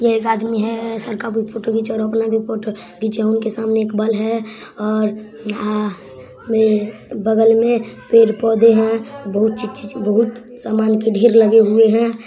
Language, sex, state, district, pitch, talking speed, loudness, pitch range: Hindi, female, Bihar, Samastipur, 220 Hz, 200 wpm, -16 LUFS, 215-225 Hz